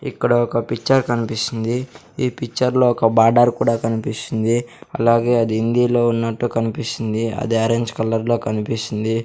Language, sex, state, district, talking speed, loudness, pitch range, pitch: Telugu, male, Andhra Pradesh, Sri Satya Sai, 125 wpm, -19 LUFS, 115-120 Hz, 115 Hz